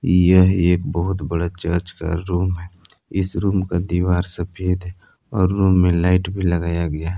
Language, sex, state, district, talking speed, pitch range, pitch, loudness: Hindi, male, Jharkhand, Palamu, 175 wpm, 85-95 Hz, 90 Hz, -20 LUFS